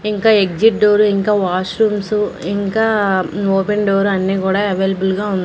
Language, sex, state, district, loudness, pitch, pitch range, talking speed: Telugu, female, Andhra Pradesh, Manyam, -15 LUFS, 200 Hz, 195-210 Hz, 145 wpm